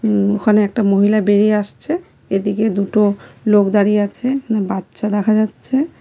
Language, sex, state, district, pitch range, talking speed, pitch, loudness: Bengali, female, West Bengal, Cooch Behar, 205-215 Hz, 140 wpm, 210 Hz, -16 LUFS